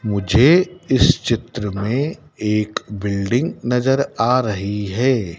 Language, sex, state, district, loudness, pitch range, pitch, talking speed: Hindi, male, Madhya Pradesh, Dhar, -18 LUFS, 105-130 Hz, 115 Hz, 110 wpm